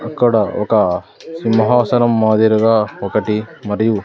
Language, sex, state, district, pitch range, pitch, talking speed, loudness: Telugu, male, Andhra Pradesh, Sri Satya Sai, 110-120 Hz, 110 Hz, 105 wpm, -15 LUFS